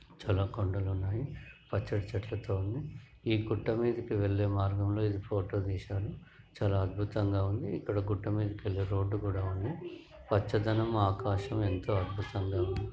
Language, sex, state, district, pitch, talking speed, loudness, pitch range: Telugu, female, Andhra Pradesh, Krishna, 100 Hz, 120 wpm, -33 LUFS, 100-110 Hz